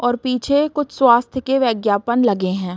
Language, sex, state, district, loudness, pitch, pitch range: Hindi, female, Uttar Pradesh, Gorakhpur, -17 LUFS, 245 Hz, 220-265 Hz